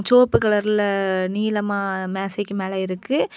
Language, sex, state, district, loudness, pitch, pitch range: Tamil, female, Tamil Nadu, Kanyakumari, -21 LUFS, 200 Hz, 190-210 Hz